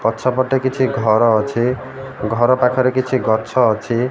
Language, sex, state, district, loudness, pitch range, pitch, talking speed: Odia, male, Odisha, Malkangiri, -17 LUFS, 115-130 Hz, 125 Hz, 145 wpm